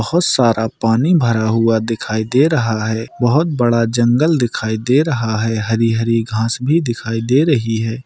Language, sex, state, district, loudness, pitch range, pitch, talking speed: Hindi, male, Maharashtra, Sindhudurg, -16 LUFS, 110-130 Hz, 115 Hz, 170 wpm